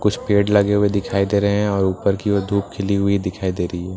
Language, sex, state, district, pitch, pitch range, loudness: Hindi, male, Bihar, Katihar, 100 Hz, 95-100 Hz, -19 LUFS